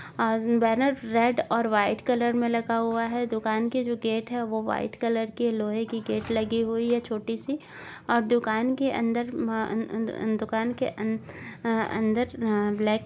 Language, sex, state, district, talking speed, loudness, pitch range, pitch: Hindi, female, Chhattisgarh, Jashpur, 195 wpm, -27 LUFS, 220-235 Hz, 230 Hz